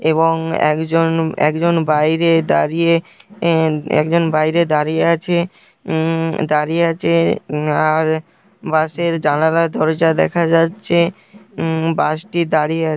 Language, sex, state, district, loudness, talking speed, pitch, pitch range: Bengali, male, West Bengal, Jhargram, -16 LUFS, 110 wpm, 165 Hz, 155-170 Hz